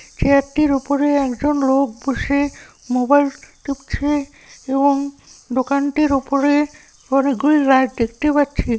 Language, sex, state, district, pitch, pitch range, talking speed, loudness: Bengali, male, West Bengal, Kolkata, 280 Hz, 270-290 Hz, 110 wpm, -18 LUFS